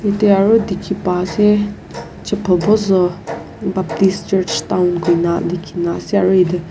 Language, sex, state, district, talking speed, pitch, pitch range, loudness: Nagamese, female, Nagaland, Kohima, 135 wpm, 190 Hz, 180-200 Hz, -16 LUFS